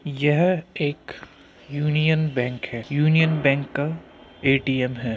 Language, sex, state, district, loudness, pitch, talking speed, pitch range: Hindi, male, Uttar Pradesh, Varanasi, -22 LUFS, 145 Hz, 105 wpm, 135-155 Hz